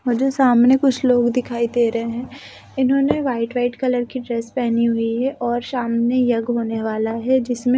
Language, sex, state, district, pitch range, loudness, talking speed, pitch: Hindi, female, Delhi, New Delhi, 235-255 Hz, -19 LUFS, 175 wpm, 245 Hz